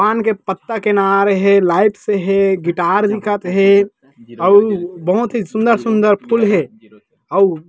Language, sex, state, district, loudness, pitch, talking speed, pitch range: Chhattisgarhi, male, Chhattisgarh, Rajnandgaon, -15 LUFS, 200 Hz, 150 wpm, 185-210 Hz